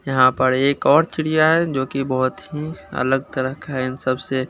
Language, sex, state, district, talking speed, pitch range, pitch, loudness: Hindi, male, Bihar, Kaimur, 225 wpm, 130-150 Hz, 135 Hz, -20 LUFS